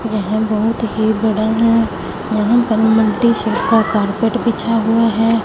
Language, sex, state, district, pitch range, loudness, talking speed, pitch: Hindi, female, Punjab, Fazilka, 215-230 Hz, -15 LUFS, 155 wpm, 220 Hz